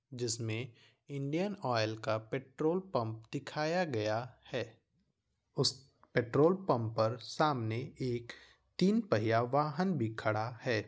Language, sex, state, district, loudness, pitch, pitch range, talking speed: Hindi, male, Bihar, Vaishali, -34 LUFS, 125 Hz, 110-155 Hz, 120 wpm